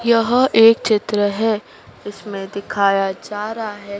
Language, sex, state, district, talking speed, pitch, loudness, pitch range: Hindi, female, Madhya Pradesh, Dhar, 135 wpm, 210 Hz, -18 LUFS, 200-225 Hz